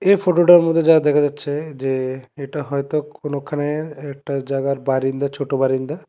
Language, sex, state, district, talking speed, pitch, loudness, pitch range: Bengali, male, Tripura, West Tripura, 160 wpm, 145 Hz, -19 LUFS, 135-150 Hz